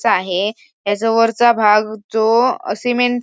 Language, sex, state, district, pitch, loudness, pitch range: Marathi, female, Maharashtra, Sindhudurg, 225 Hz, -16 LUFS, 210-240 Hz